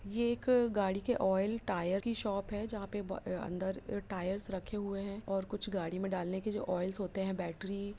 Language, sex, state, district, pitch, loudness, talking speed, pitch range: Hindi, female, Jharkhand, Sahebganj, 195 Hz, -35 LUFS, 240 wpm, 190-210 Hz